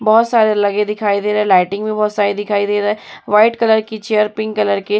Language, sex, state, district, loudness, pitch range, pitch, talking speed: Hindi, female, Uttar Pradesh, Muzaffarnagar, -15 LUFS, 205-215 Hz, 210 Hz, 275 wpm